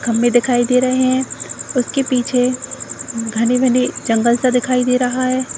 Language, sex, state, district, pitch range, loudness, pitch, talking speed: Hindi, female, Uttar Pradesh, Deoria, 240-255 Hz, -16 LUFS, 250 Hz, 150 wpm